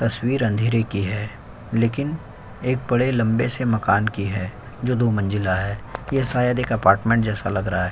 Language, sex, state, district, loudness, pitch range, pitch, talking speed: Hindi, male, Uttar Pradesh, Jyotiba Phule Nagar, -22 LUFS, 100-125 Hz, 115 Hz, 180 wpm